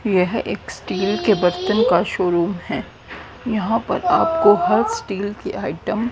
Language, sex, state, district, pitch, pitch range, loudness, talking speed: Hindi, female, Haryana, Rohtak, 205 Hz, 185-225 Hz, -19 LUFS, 155 wpm